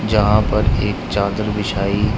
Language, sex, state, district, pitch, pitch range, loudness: Hindi, male, Punjab, Kapurthala, 105 Hz, 100-105 Hz, -18 LUFS